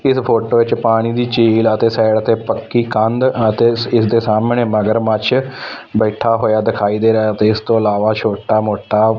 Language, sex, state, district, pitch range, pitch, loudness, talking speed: Punjabi, male, Punjab, Fazilka, 110-115 Hz, 115 Hz, -14 LUFS, 185 wpm